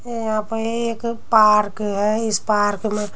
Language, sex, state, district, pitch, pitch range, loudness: Hindi, female, Uttar Pradesh, Muzaffarnagar, 215 Hz, 210-225 Hz, -19 LUFS